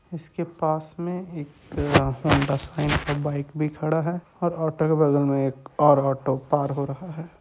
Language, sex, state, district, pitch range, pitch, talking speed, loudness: Chhattisgarhi, male, Chhattisgarh, Sarguja, 140-160 Hz, 150 Hz, 200 wpm, -24 LUFS